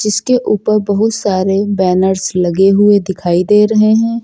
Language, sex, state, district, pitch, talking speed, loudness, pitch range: Hindi, female, Uttar Pradesh, Lucknow, 205 Hz, 155 wpm, -12 LUFS, 190-215 Hz